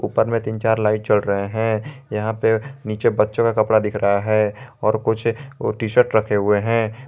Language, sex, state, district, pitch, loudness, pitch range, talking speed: Hindi, male, Jharkhand, Garhwa, 110 Hz, -20 LUFS, 105-115 Hz, 185 wpm